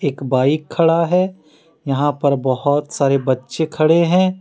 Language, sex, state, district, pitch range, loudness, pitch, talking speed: Hindi, male, Jharkhand, Deoghar, 140-165 Hz, -17 LUFS, 150 Hz, 150 wpm